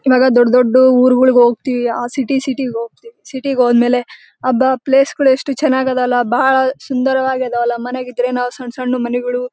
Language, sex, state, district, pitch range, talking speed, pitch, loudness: Kannada, female, Karnataka, Bellary, 245-265 Hz, 140 wpm, 255 Hz, -14 LUFS